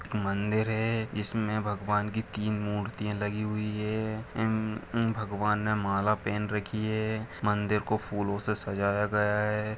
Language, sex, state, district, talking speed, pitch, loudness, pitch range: Hindi, male, Jharkhand, Sahebganj, 160 wpm, 105 Hz, -30 LUFS, 105-110 Hz